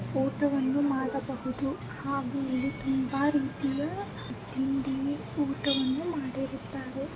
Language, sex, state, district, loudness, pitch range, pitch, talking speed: Kannada, female, Karnataka, Belgaum, -31 LUFS, 265-280 Hz, 275 Hz, 75 wpm